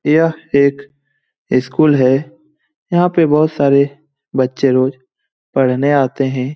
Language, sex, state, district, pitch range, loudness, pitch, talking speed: Hindi, male, Bihar, Lakhisarai, 130-155 Hz, -15 LUFS, 140 Hz, 120 wpm